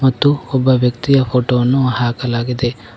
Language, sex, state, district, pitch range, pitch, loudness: Kannada, male, Karnataka, Koppal, 120-130 Hz, 125 Hz, -15 LUFS